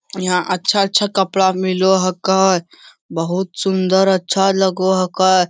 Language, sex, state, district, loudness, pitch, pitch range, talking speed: Hindi, male, Bihar, Lakhisarai, -16 LUFS, 190 Hz, 185-190 Hz, 110 wpm